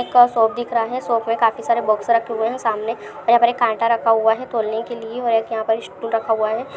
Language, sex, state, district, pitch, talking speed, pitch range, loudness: Hindi, female, Bihar, Lakhisarai, 230 Hz, 300 wpm, 225-235 Hz, -19 LUFS